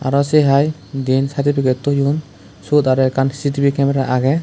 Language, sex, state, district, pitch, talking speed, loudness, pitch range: Chakma, male, Tripura, West Tripura, 140 Hz, 160 wpm, -16 LUFS, 130-140 Hz